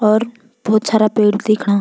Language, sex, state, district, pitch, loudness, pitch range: Garhwali, female, Uttarakhand, Tehri Garhwal, 215 Hz, -15 LUFS, 210-220 Hz